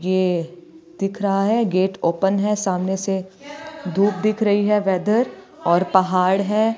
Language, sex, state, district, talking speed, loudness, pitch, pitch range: Hindi, female, Himachal Pradesh, Shimla, 150 wpm, -20 LUFS, 195 Hz, 185-215 Hz